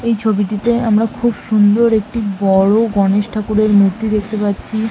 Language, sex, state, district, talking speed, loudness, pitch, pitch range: Bengali, female, West Bengal, Malda, 145 wpm, -15 LUFS, 215 Hz, 205-225 Hz